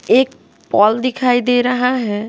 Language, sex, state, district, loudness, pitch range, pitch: Hindi, female, Bihar, West Champaran, -15 LUFS, 225-250 Hz, 245 Hz